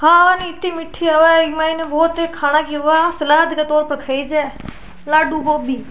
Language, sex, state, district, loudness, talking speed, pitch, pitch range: Rajasthani, female, Rajasthan, Churu, -16 LUFS, 205 wpm, 315 Hz, 300-330 Hz